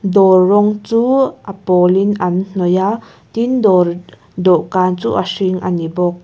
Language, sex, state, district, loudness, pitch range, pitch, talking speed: Mizo, female, Mizoram, Aizawl, -14 LUFS, 180-205 Hz, 190 Hz, 165 wpm